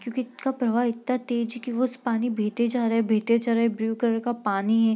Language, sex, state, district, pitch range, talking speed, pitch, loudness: Hindi, female, Bihar, East Champaran, 225-240 Hz, 275 wpm, 235 Hz, -25 LUFS